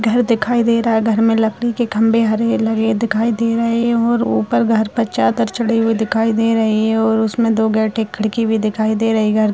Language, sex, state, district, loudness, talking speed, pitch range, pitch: Kumaoni, female, Uttarakhand, Uttarkashi, -16 LUFS, 245 wpm, 220-230 Hz, 225 Hz